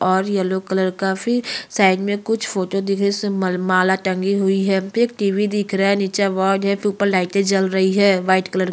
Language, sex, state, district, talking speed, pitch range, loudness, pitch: Hindi, female, Chhattisgarh, Kabirdham, 245 wpm, 190-200 Hz, -19 LUFS, 195 Hz